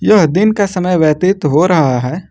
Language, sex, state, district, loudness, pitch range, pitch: Hindi, male, Jharkhand, Ranchi, -12 LUFS, 155-195 Hz, 180 Hz